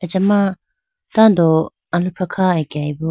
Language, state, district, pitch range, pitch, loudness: Idu Mishmi, Arunachal Pradesh, Lower Dibang Valley, 160-205 Hz, 185 Hz, -17 LUFS